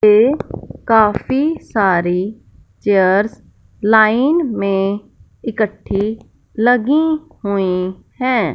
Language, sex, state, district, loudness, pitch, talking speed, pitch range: Hindi, male, Punjab, Fazilka, -16 LUFS, 215 Hz, 70 wpm, 195-245 Hz